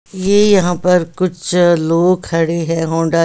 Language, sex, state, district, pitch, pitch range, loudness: Hindi, female, Bihar, West Champaran, 175 Hz, 165-185 Hz, -14 LUFS